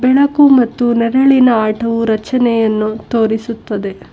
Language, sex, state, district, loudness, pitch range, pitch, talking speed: Kannada, female, Karnataka, Bangalore, -13 LUFS, 220-255 Hz, 230 Hz, 85 wpm